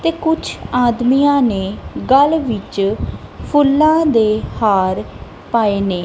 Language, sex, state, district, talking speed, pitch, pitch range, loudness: Punjabi, female, Punjab, Kapurthala, 110 wpm, 240 Hz, 205-285 Hz, -15 LUFS